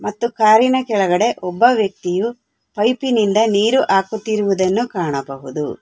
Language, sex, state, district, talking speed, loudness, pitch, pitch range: Kannada, female, Karnataka, Bangalore, 105 wpm, -17 LUFS, 215 Hz, 190-235 Hz